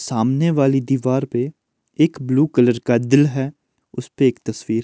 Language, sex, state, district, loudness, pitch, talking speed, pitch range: Hindi, male, Himachal Pradesh, Shimla, -18 LUFS, 130 Hz, 175 wpm, 120-140 Hz